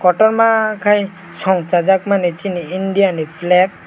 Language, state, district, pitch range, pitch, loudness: Kokborok, Tripura, West Tripura, 180-205 Hz, 190 Hz, -15 LUFS